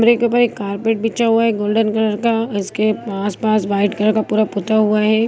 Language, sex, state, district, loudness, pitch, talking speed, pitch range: Hindi, female, Chhattisgarh, Bastar, -17 LUFS, 215 Hz, 215 wpm, 210-225 Hz